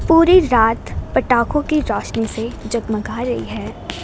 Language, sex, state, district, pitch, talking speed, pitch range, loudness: Hindi, female, Gujarat, Gandhinagar, 240 Hz, 135 wpm, 225-300 Hz, -18 LUFS